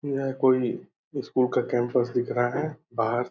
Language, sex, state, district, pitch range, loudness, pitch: Angika, male, Bihar, Purnia, 120-135 Hz, -26 LUFS, 125 Hz